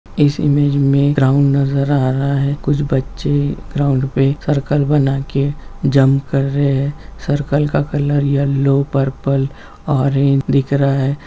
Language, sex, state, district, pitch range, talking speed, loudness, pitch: Hindi, male, Bihar, Jamui, 135-145 Hz, 150 wpm, -16 LUFS, 140 Hz